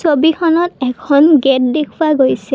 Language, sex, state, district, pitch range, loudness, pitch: Assamese, female, Assam, Kamrup Metropolitan, 270-320 Hz, -13 LUFS, 300 Hz